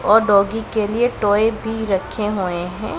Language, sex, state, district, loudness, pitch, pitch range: Hindi, female, Punjab, Pathankot, -19 LUFS, 215 Hz, 200-225 Hz